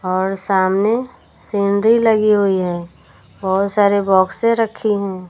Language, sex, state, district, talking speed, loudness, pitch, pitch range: Hindi, female, Uttar Pradesh, Lucknow, 125 wpm, -16 LUFS, 200 Hz, 190-215 Hz